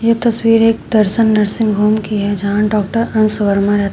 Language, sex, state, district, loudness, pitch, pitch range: Hindi, female, Uttar Pradesh, Shamli, -14 LUFS, 215 Hz, 205-225 Hz